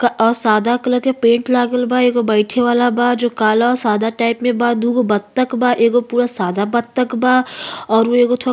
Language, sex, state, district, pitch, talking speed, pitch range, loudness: Bhojpuri, female, Uttar Pradesh, Ghazipur, 240 Hz, 195 wpm, 230-250 Hz, -15 LUFS